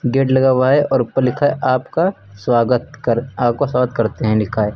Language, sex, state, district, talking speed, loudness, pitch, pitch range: Hindi, male, Uttar Pradesh, Lucknow, 215 wpm, -17 LUFS, 125 Hz, 115-135 Hz